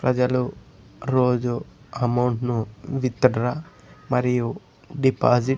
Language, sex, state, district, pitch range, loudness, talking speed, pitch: Telugu, male, Andhra Pradesh, Sri Satya Sai, 120-130 Hz, -23 LUFS, 95 wpm, 125 Hz